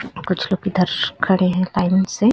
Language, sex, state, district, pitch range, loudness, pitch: Hindi, female, Chhattisgarh, Bilaspur, 180-195 Hz, -19 LUFS, 185 Hz